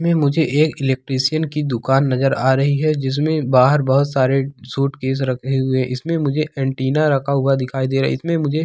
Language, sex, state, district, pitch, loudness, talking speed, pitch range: Hindi, male, Andhra Pradesh, Krishna, 135 Hz, -18 LUFS, 195 wpm, 130-150 Hz